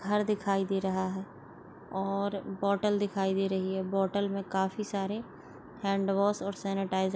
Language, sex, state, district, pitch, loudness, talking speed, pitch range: Hindi, female, Maharashtra, Pune, 195 Hz, -31 LUFS, 170 wpm, 190-200 Hz